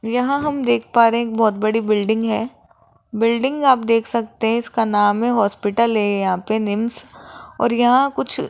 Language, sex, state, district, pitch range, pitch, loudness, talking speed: Hindi, female, Rajasthan, Jaipur, 215-240 Hz, 230 Hz, -18 LUFS, 195 wpm